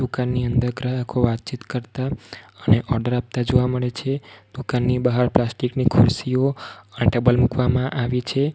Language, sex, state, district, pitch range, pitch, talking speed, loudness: Gujarati, male, Gujarat, Valsad, 120-130 Hz, 125 Hz, 155 wpm, -21 LUFS